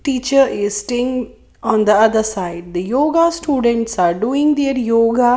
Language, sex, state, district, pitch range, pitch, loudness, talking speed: English, female, Maharashtra, Mumbai Suburban, 215-275 Hz, 235 Hz, -16 LUFS, 155 wpm